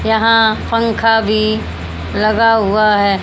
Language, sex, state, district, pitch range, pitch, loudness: Hindi, female, Haryana, Jhajjar, 200-225 Hz, 215 Hz, -13 LUFS